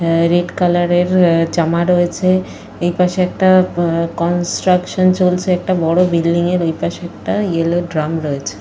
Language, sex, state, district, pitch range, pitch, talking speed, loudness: Bengali, female, Jharkhand, Jamtara, 170-180 Hz, 175 Hz, 155 wpm, -15 LUFS